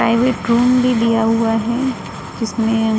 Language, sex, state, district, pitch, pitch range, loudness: Hindi, female, Uttar Pradesh, Budaun, 230 Hz, 225-245 Hz, -16 LUFS